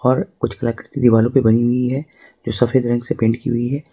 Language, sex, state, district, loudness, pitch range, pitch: Hindi, male, Jharkhand, Ranchi, -18 LUFS, 115-135 Hz, 120 Hz